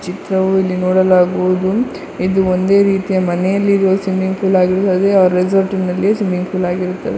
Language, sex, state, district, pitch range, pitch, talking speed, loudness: Kannada, female, Karnataka, Dakshina Kannada, 185-195 Hz, 190 Hz, 135 wpm, -14 LUFS